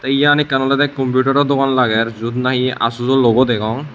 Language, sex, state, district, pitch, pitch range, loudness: Chakma, male, Tripura, West Tripura, 130 Hz, 120-135 Hz, -15 LUFS